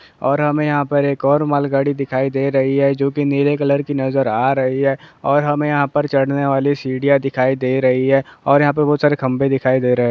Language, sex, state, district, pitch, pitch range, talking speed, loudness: Hindi, male, Jharkhand, Sahebganj, 140 Hz, 135-145 Hz, 245 wpm, -17 LUFS